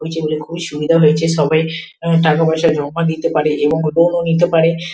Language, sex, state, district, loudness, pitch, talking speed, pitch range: Bengali, female, West Bengal, Kolkata, -15 LUFS, 160 Hz, 195 wpm, 155-165 Hz